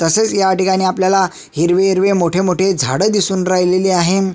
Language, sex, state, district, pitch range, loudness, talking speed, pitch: Marathi, male, Maharashtra, Sindhudurg, 180-195 Hz, -14 LUFS, 165 wpm, 190 Hz